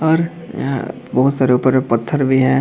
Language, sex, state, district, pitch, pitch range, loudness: Hindi, male, Bihar, Darbhanga, 135 Hz, 130-160 Hz, -17 LUFS